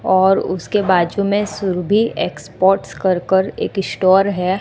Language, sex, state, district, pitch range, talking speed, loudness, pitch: Hindi, female, Gujarat, Gandhinagar, 185-200 Hz, 145 wpm, -17 LUFS, 190 Hz